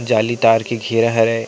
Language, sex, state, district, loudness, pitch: Chhattisgarhi, male, Chhattisgarh, Sarguja, -16 LUFS, 115 Hz